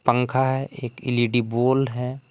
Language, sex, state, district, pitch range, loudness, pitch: Hindi, male, Jharkhand, Palamu, 120-130 Hz, -23 LUFS, 125 Hz